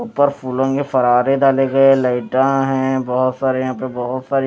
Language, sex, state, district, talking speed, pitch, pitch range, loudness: Hindi, male, Chhattisgarh, Raipur, 185 wpm, 130 Hz, 130-135 Hz, -16 LUFS